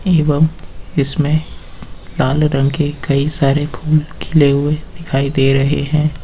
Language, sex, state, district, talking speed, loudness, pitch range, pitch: Hindi, male, Uttar Pradesh, Lucknow, 135 wpm, -15 LUFS, 135-155 Hz, 145 Hz